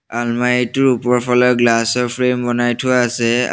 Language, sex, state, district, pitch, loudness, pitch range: Assamese, male, Assam, Sonitpur, 125 Hz, -16 LUFS, 120-125 Hz